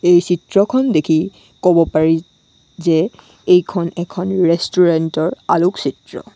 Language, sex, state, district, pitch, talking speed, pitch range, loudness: Assamese, female, Assam, Sonitpur, 175 Hz, 105 wpm, 165-180 Hz, -16 LUFS